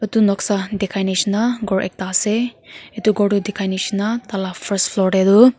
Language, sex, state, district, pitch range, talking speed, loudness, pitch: Nagamese, female, Nagaland, Kohima, 190-215 Hz, 180 wpm, -18 LUFS, 205 Hz